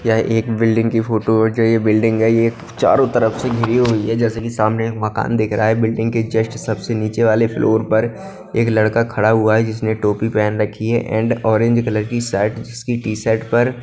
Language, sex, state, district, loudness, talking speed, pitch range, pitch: Hindi, male, Punjab, Kapurthala, -17 LUFS, 215 wpm, 110-115 Hz, 115 Hz